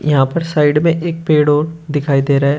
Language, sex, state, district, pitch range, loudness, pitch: Hindi, male, Uttar Pradesh, Shamli, 145-165 Hz, -15 LUFS, 150 Hz